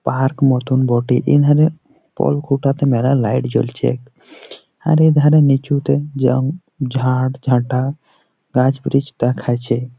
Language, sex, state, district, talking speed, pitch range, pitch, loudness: Bengali, male, West Bengal, Jalpaiguri, 115 wpm, 125-145 Hz, 135 Hz, -16 LUFS